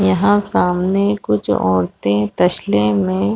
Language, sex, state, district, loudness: Hindi, female, Chhattisgarh, Raigarh, -16 LUFS